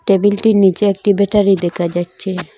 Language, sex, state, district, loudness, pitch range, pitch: Bengali, female, Assam, Hailakandi, -14 LUFS, 180-205 Hz, 195 Hz